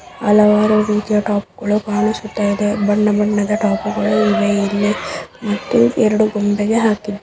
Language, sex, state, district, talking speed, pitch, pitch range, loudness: Kannada, male, Karnataka, Bijapur, 135 wpm, 210 Hz, 205-215 Hz, -16 LUFS